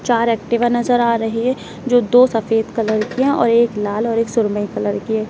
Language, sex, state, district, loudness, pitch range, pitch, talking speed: Hindi, female, Uttar Pradesh, Lalitpur, -17 LUFS, 220-240 Hz, 230 Hz, 240 wpm